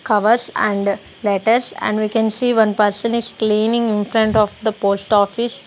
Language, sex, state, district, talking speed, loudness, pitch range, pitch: English, female, Punjab, Kapurthala, 180 wpm, -17 LUFS, 210-230 Hz, 215 Hz